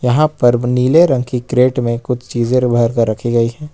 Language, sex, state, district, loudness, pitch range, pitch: Hindi, male, Jharkhand, Ranchi, -14 LUFS, 120-130 Hz, 125 Hz